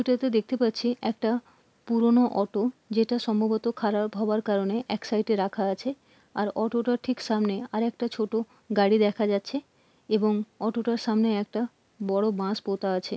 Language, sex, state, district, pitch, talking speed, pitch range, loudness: Bengali, female, West Bengal, Purulia, 220 Hz, 160 wpm, 210-235 Hz, -27 LUFS